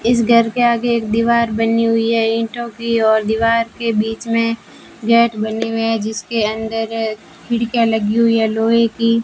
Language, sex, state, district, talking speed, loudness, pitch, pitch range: Hindi, female, Rajasthan, Bikaner, 180 wpm, -16 LUFS, 230 Hz, 225-230 Hz